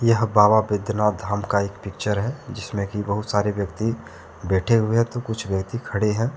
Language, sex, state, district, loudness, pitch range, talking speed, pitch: Hindi, male, Jharkhand, Deoghar, -22 LUFS, 100-115 Hz, 200 wpm, 105 Hz